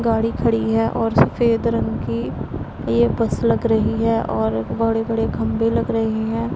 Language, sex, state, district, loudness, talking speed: Hindi, female, Punjab, Pathankot, -20 LUFS, 165 wpm